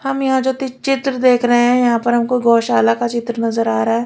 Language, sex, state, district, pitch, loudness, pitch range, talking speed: Hindi, female, Delhi, New Delhi, 240 Hz, -15 LUFS, 230-260 Hz, 250 wpm